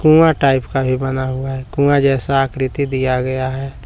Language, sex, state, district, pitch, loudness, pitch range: Hindi, male, Jharkhand, Palamu, 135 Hz, -17 LUFS, 130-140 Hz